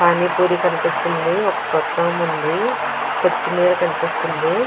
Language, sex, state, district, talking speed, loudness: Telugu, female, Andhra Pradesh, Visakhapatnam, 75 wpm, -19 LUFS